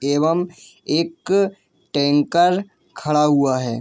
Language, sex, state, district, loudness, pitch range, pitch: Hindi, male, Jharkhand, Jamtara, -19 LUFS, 145-175 Hz, 155 Hz